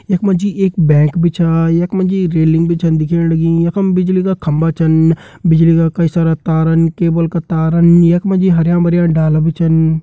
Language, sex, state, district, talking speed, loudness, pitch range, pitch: Hindi, male, Uttarakhand, Uttarkashi, 215 wpm, -12 LUFS, 160-175 Hz, 165 Hz